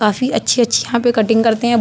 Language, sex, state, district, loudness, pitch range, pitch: Hindi, male, Uttar Pradesh, Budaun, -15 LUFS, 220-240 Hz, 230 Hz